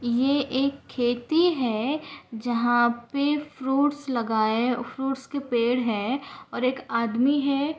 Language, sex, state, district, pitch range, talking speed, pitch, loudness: Hindi, female, Maharashtra, Aurangabad, 240-280 Hz, 125 wpm, 260 Hz, -25 LUFS